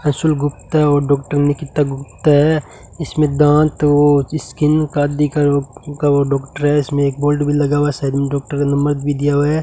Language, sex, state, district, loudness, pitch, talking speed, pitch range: Hindi, male, Rajasthan, Bikaner, -16 LUFS, 145 Hz, 210 wpm, 140-150 Hz